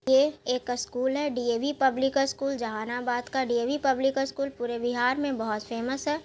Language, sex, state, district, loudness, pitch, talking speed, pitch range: Hindi, female, Bihar, Gaya, -28 LUFS, 260 Hz, 200 wpm, 240-275 Hz